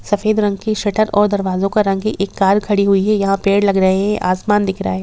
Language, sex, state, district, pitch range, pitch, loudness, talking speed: Hindi, female, Bihar, Gopalganj, 195-210 Hz, 200 Hz, -16 LUFS, 265 wpm